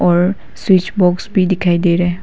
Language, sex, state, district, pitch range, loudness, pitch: Hindi, female, Arunachal Pradesh, Papum Pare, 175-190 Hz, -14 LUFS, 180 Hz